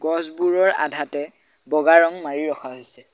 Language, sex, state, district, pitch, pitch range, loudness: Assamese, male, Assam, Sonitpur, 155 Hz, 145-165 Hz, -20 LUFS